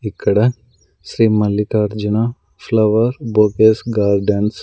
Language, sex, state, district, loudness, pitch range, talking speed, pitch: Telugu, male, Andhra Pradesh, Sri Satya Sai, -16 LUFS, 105-115 Hz, 90 wpm, 105 Hz